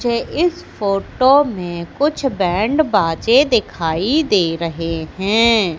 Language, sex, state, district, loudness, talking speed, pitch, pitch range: Hindi, female, Madhya Pradesh, Katni, -17 LUFS, 115 wpm, 210 Hz, 170-270 Hz